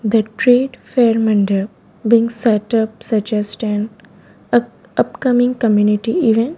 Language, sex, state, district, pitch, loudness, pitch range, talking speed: English, female, Gujarat, Valsad, 225 Hz, -16 LUFS, 210-235 Hz, 100 wpm